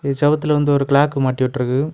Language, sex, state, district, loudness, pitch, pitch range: Tamil, male, Tamil Nadu, Kanyakumari, -17 LUFS, 140 Hz, 130-145 Hz